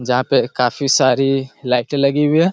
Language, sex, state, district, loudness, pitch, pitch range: Hindi, male, Chhattisgarh, Raigarh, -16 LUFS, 135 Hz, 125-140 Hz